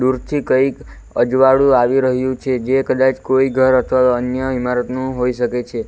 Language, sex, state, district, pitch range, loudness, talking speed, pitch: Gujarati, male, Gujarat, Valsad, 125-130 Hz, -16 LUFS, 165 wpm, 130 Hz